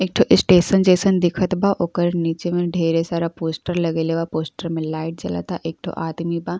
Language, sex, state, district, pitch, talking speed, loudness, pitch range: Bhojpuri, female, Uttar Pradesh, Ghazipur, 170 Hz, 200 wpm, -20 LUFS, 165-180 Hz